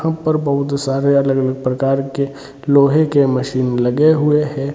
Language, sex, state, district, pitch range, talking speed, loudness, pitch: Hindi, male, Jharkhand, Sahebganj, 135-150 Hz, 175 wpm, -16 LUFS, 140 Hz